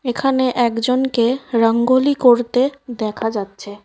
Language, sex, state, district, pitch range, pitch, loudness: Bengali, female, West Bengal, Cooch Behar, 225-260 Hz, 245 Hz, -17 LUFS